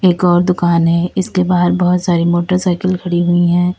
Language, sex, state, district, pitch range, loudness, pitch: Hindi, female, Uttar Pradesh, Lalitpur, 175-180 Hz, -14 LUFS, 175 Hz